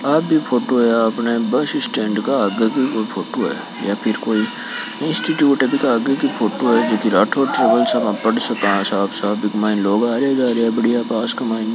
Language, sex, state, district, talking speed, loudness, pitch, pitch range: Hindi, male, Rajasthan, Nagaur, 195 wpm, -18 LUFS, 115 Hz, 105-125 Hz